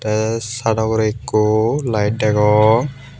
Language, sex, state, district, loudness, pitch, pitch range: Chakma, male, Tripura, Unakoti, -17 LUFS, 110 Hz, 105-115 Hz